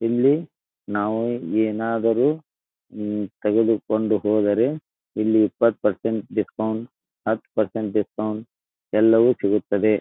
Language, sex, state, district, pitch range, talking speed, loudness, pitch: Kannada, male, Karnataka, Dharwad, 105-115 Hz, 95 wpm, -22 LUFS, 110 Hz